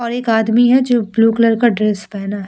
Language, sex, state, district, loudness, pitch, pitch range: Hindi, female, Bihar, Vaishali, -14 LUFS, 225 Hz, 215-240 Hz